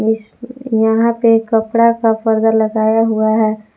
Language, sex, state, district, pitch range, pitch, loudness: Hindi, female, Jharkhand, Palamu, 220-230 Hz, 225 Hz, -14 LUFS